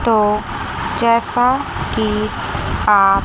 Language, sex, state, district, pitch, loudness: Hindi, female, Chandigarh, Chandigarh, 205 Hz, -17 LUFS